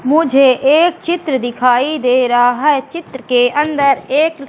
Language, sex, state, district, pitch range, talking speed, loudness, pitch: Hindi, female, Madhya Pradesh, Katni, 255-305 Hz, 145 wpm, -13 LUFS, 275 Hz